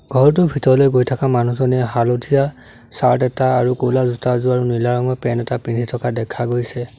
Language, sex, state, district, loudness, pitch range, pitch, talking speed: Assamese, male, Assam, Sonitpur, -17 LUFS, 120-130 Hz, 125 Hz, 180 wpm